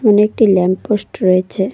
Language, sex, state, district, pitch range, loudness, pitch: Bengali, female, West Bengal, Cooch Behar, 185-215 Hz, -14 LUFS, 195 Hz